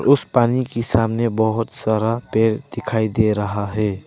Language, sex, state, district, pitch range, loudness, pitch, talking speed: Hindi, male, Arunachal Pradesh, Lower Dibang Valley, 110-115 Hz, -19 LUFS, 110 Hz, 160 wpm